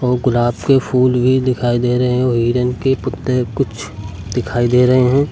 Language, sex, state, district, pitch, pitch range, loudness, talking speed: Hindi, male, Uttar Pradesh, Lucknow, 125 Hz, 120-130 Hz, -15 LUFS, 205 wpm